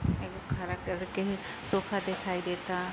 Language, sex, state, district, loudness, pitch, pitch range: Bhojpuri, female, Uttar Pradesh, Gorakhpur, -33 LUFS, 185 Hz, 180-195 Hz